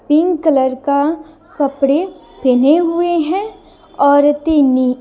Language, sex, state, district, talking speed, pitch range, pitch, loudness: Hindi, female, Bihar, Patna, 95 wpm, 280-340 Hz, 305 Hz, -14 LUFS